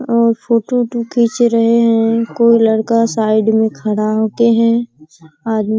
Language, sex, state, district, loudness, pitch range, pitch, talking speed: Hindi, female, Bihar, Kishanganj, -14 LUFS, 220-235 Hz, 230 Hz, 165 wpm